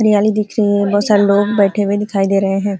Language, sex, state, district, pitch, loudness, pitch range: Hindi, female, Uttar Pradesh, Ghazipur, 205 Hz, -14 LUFS, 200-210 Hz